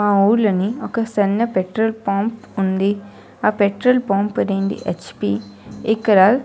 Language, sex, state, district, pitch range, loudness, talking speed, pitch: Telugu, female, Andhra Pradesh, Srikakulam, 195-220 Hz, -19 LUFS, 110 wpm, 205 Hz